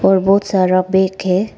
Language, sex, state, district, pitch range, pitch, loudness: Hindi, female, Arunachal Pradesh, Papum Pare, 185-195 Hz, 190 Hz, -15 LUFS